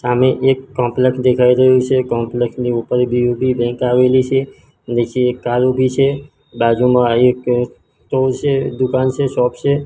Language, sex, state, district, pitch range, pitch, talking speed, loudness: Gujarati, male, Gujarat, Gandhinagar, 125-130 Hz, 125 Hz, 160 wpm, -15 LUFS